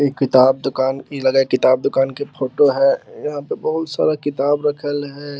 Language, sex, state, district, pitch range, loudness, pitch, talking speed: Magahi, male, Bihar, Lakhisarai, 135-145 Hz, -18 LUFS, 140 Hz, 210 wpm